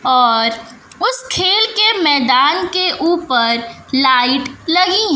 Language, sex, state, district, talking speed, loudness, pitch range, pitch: Hindi, female, Bihar, West Champaran, 115 wpm, -14 LUFS, 250-365 Hz, 285 Hz